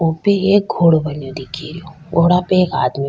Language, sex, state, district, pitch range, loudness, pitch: Rajasthani, female, Rajasthan, Nagaur, 150-180 Hz, -15 LUFS, 165 Hz